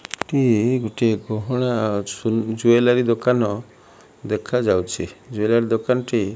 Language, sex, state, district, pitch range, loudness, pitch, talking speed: Odia, male, Odisha, Malkangiri, 110-125 Hz, -20 LUFS, 115 Hz, 95 wpm